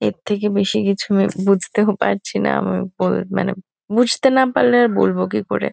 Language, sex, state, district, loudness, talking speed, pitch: Bengali, female, West Bengal, Kolkata, -18 LUFS, 190 wpm, 195 Hz